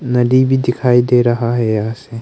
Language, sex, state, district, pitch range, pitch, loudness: Hindi, male, Arunachal Pradesh, Longding, 115-125 Hz, 120 Hz, -14 LUFS